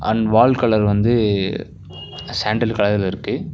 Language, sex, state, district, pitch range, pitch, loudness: Tamil, male, Tamil Nadu, Nilgiris, 105-115 Hz, 110 Hz, -18 LUFS